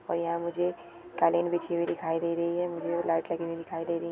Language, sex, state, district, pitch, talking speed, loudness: Hindi, female, Chhattisgarh, Jashpur, 170 Hz, 260 wpm, -30 LUFS